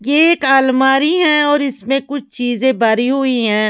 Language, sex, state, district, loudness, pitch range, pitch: Hindi, female, Himachal Pradesh, Shimla, -14 LUFS, 245-285 Hz, 270 Hz